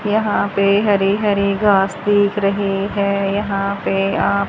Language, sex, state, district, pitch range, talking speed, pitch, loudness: Hindi, female, Haryana, Charkhi Dadri, 195-205 Hz, 145 wpm, 200 Hz, -17 LUFS